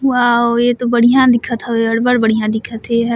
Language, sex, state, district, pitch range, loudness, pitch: Surgujia, female, Chhattisgarh, Sarguja, 230-245 Hz, -14 LUFS, 235 Hz